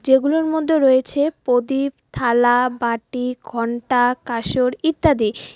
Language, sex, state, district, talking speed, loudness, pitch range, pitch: Bengali, female, West Bengal, Alipurduar, 95 wpm, -19 LUFS, 240-280 Hz, 250 Hz